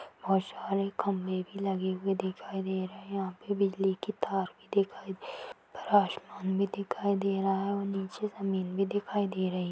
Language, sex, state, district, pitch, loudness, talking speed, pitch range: Hindi, female, Chhattisgarh, Bilaspur, 195 Hz, -32 LUFS, 190 wpm, 190-200 Hz